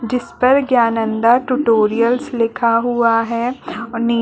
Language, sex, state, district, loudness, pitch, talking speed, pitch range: Hindi, female, Chhattisgarh, Balrampur, -16 LUFS, 235 Hz, 140 wpm, 230-250 Hz